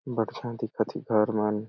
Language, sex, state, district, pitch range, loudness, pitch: Awadhi, male, Chhattisgarh, Balrampur, 105-120 Hz, -28 LUFS, 110 Hz